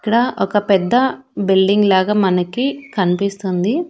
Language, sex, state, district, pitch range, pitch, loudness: Telugu, female, Andhra Pradesh, Annamaya, 190-240 Hz, 205 Hz, -16 LUFS